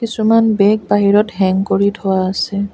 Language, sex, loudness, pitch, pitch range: Assamese, female, -14 LUFS, 200 Hz, 195-215 Hz